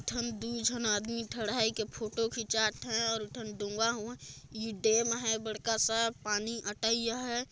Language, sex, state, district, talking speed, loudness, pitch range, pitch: Chhattisgarhi, female, Chhattisgarh, Jashpur, 175 wpm, -32 LUFS, 220-230 Hz, 225 Hz